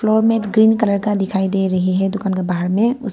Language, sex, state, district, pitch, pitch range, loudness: Hindi, female, Arunachal Pradesh, Papum Pare, 200 Hz, 190-220 Hz, -17 LUFS